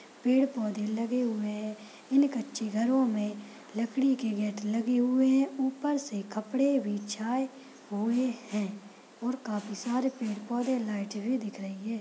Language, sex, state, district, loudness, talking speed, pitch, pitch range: Hindi, female, Chhattisgarh, Rajnandgaon, -30 LUFS, 155 wpm, 230 Hz, 210-260 Hz